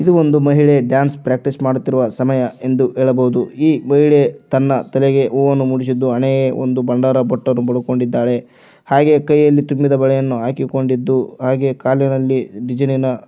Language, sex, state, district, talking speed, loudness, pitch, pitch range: Kannada, male, Karnataka, Koppal, 125 wpm, -15 LUFS, 130 Hz, 130-140 Hz